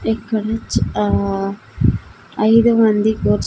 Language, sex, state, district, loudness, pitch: Telugu, female, Andhra Pradesh, Sri Satya Sai, -17 LUFS, 210 Hz